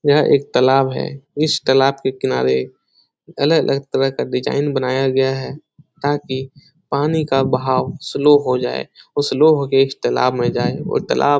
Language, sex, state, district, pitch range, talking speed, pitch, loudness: Hindi, male, Bihar, Jahanabad, 130-145 Hz, 175 wpm, 135 Hz, -17 LUFS